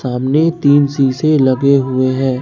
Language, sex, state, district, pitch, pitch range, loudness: Hindi, male, Bihar, Katihar, 135 Hz, 130-145 Hz, -13 LUFS